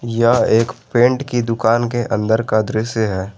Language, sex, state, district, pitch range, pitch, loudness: Hindi, male, Jharkhand, Garhwa, 110-120 Hz, 115 Hz, -17 LUFS